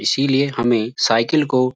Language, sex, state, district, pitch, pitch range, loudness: Hindi, male, Uttarakhand, Uttarkashi, 130 Hz, 120-140 Hz, -17 LUFS